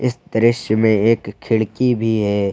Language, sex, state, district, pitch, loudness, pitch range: Hindi, male, Jharkhand, Palamu, 110 Hz, -17 LUFS, 110-115 Hz